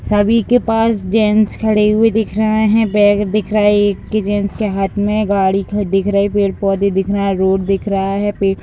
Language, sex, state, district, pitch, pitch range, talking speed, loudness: Hindi, female, Bihar, Sitamarhi, 205 Hz, 195-215 Hz, 230 wpm, -15 LUFS